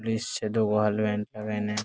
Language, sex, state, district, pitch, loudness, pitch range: Maithili, male, Bihar, Saharsa, 105 Hz, -28 LUFS, 105-110 Hz